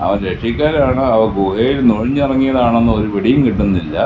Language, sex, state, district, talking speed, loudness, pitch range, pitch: Malayalam, male, Kerala, Kasaragod, 120 wpm, -14 LUFS, 105-135 Hz, 115 Hz